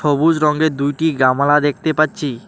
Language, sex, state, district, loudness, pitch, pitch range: Bengali, male, West Bengal, Alipurduar, -16 LUFS, 150 Hz, 140-155 Hz